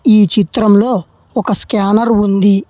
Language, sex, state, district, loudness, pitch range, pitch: Telugu, male, Telangana, Hyderabad, -12 LUFS, 200-225 Hz, 210 Hz